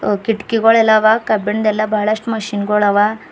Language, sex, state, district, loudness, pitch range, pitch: Kannada, female, Karnataka, Bidar, -15 LUFS, 210-220 Hz, 215 Hz